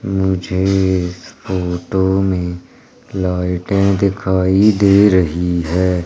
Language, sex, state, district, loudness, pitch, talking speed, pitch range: Hindi, male, Madhya Pradesh, Umaria, -16 LUFS, 95 Hz, 90 wpm, 90-95 Hz